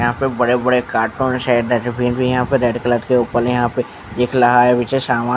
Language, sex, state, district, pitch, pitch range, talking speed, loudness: Hindi, male, Bihar, West Champaran, 125 Hz, 120-125 Hz, 225 wpm, -16 LUFS